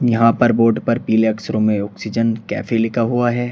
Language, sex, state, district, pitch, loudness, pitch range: Hindi, male, Uttar Pradesh, Shamli, 115 Hz, -17 LUFS, 110-120 Hz